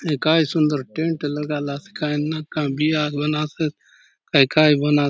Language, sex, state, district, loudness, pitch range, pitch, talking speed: Halbi, male, Chhattisgarh, Bastar, -21 LUFS, 145-155 Hz, 150 Hz, 155 wpm